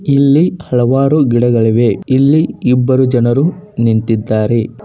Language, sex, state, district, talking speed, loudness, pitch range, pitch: Kannada, male, Karnataka, Bijapur, 85 wpm, -12 LUFS, 115-140 Hz, 125 Hz